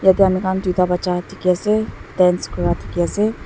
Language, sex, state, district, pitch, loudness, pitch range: Nagamese, female, Nagaland, Dimapur, 185 Hz, -19 LUFS, 180-190 Hz